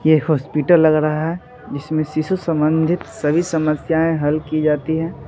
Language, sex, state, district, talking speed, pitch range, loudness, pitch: Hindi, male, Bihar, Muzaffarpur, 160 wpm, 150-165 Hz, -18 LUFS, 155 Hz